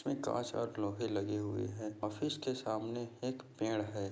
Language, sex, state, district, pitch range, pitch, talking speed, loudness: Hindi, male, Maharashtra, Nagpur, 105-120 Hz, 110 Hz, 145 wpm, -39 LUFS